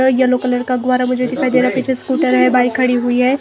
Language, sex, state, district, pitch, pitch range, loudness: Hindi, female, Himachal Pradesh, Shimla, 255 Hz, 250-260 Hz, -15 LUFS